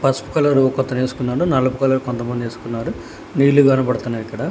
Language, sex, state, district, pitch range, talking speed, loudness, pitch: Telugu, male, Telangana, Hyderabad, 120-135 Hz, 135 wpm, -18 LUFS, 130 Hz